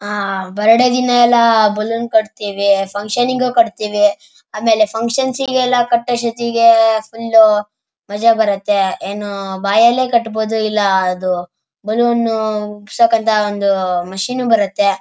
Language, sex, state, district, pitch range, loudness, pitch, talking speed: Kannada, male, Karnataka, Shimoga, 205-235 Hz, -14 LUFS, 220 Hz, 90 wpm